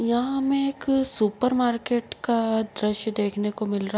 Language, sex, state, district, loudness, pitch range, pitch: Hindi, female, Uttar Pradesh, Etah, -25 LUFS, 210-255 Hz, 230 Hz